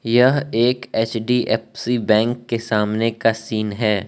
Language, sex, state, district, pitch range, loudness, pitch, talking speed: Hindi, male, Arunachal Pradesh, Lower Dibang Valley, 110-120 Hz, -19 LUFS, 115 Hz, 130 wpm